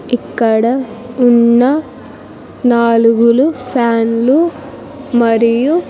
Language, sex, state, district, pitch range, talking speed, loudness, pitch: Telugu, female, Andhra Pradesh, Sri Satya Sai, 230-275 Hz, 50 wpm, -12 LUFS, 245 Hz